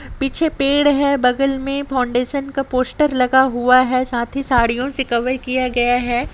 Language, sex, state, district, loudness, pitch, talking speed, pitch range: Hindi, female, Jharkhand, Sahebganj, -17 LUFS, 260 Hz, 180 wpm, 250-275 Hz